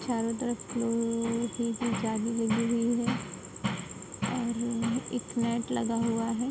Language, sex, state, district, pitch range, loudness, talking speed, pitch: Hindi, female, Uttar Pradesh, Budaun, 230-235 Hz, -31 LUFS, 110 wpm, 230 Hz